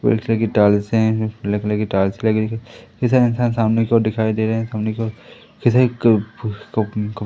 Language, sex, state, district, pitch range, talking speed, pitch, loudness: Hindi, male, Madhya Pradesh, Katni, 105-115 Hz, 215 wpm, 110 Hz, -19 LUFS